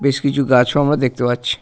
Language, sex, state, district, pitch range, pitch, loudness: Bengali, male, West Bengal, Purulia, 120-140 Hz, 130 Hz, -16 LUFS